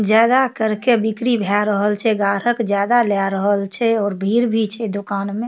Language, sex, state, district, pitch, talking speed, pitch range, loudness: Maithili, female, Bihar, Supaul, 215 Hz, 185 wpm, 200-230 Hz, -18 LUFS